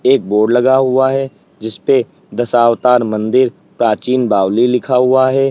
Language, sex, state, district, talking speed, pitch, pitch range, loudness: Hindi, male, Uttar Pradesh, Lalitpur, 140 wpm, 125 Hz, 115-130 Hz, -13 LUFS